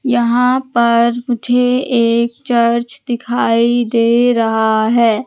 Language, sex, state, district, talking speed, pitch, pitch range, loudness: Hindi, female, Madhya Pradesh, Katni, 105 wpm, 235 Hz, 235-245 Hz, -14 LUFS